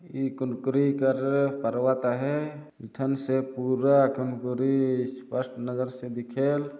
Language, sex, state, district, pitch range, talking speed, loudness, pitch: Chhattisgarhi, male, Chhattisgarh, Jashpur, 125-140 Hz, 105 wpm, -27 LUFS, 130 Hz